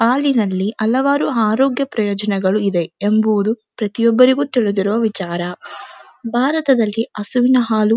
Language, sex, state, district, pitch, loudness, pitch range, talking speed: Kannada, female, Karnataka, Dharwad, 220 Hz, -17 LUFS, 205-250 Hz, 100 wpm